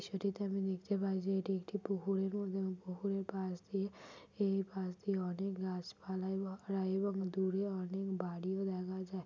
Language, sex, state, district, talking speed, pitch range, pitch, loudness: Bengali, female, West Bengal, Malda, 155 wpm, 185-195 Hz, 190 Hz, -39 LUFS